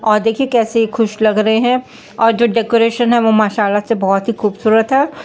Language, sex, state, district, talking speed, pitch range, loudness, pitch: Hindi, female, Bihar, Saharsa, 205 wpm, 215-235 Hz, -14 LUFS, 225 Hz